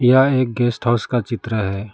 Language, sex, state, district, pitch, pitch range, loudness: Hindi, male, West Bengal, Alipurduar, 120 Hz, 110-125 Hz, -19 LUFS